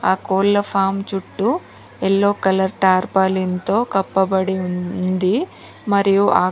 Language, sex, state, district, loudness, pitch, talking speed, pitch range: Telugu, female, Telangana, Mahabubabad, -18 LUFS, 195 Hz, 110 wpm, 190-200 Hz